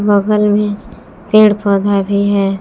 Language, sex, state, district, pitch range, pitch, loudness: Hindi, female, Jharkhand, Palamu, 200-210 Hz, 205 Hz, -12 LUFS